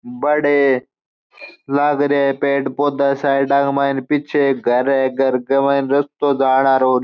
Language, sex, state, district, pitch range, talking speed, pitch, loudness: Marwari, male, Rajasthan, Churu, 135-140 Hz, 170 wpm, 140 Hz, -16 LUFS